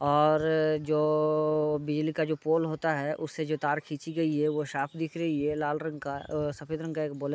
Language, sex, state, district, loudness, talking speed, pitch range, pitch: Hindi, male, Uttar Pradesh, Jalaun, -29 LUFS, 235 wpm, 150-155 Hz, 155 Hz